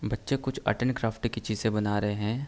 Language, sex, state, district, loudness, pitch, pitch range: Hindi, male, Uttar Pradesh, Gorakhpur, -29 LUFS, 110 Hz, 105-125 Hz